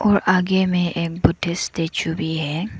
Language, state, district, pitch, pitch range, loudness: Hindi, Arunachal Pradesh, Lower Dibang Valley, 170 Hz, 165-190 Hz, -21 LUFS